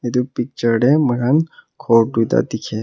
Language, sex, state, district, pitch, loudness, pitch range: Nagamese, male, Nagaland, Kohima, 120 Hz, -17 LUFS, 115-130 Hz